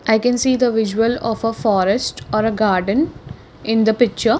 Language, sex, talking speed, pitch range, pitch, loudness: English, female, 190 wpm, 215-245 Hz, 225 Hz, -17 LUFS